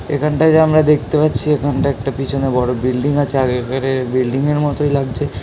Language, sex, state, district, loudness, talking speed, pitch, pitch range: Bengali, male, West Bengal, North 24 Parganas, -16 LUFS, 190 wpm, 140 Hz, 130-150 Hz